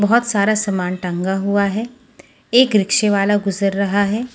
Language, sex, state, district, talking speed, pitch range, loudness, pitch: Hindi, female, Chhattisgarh, Raipur, 165 wpm, 195-220 Hz, -17 LUFS, 205 Hz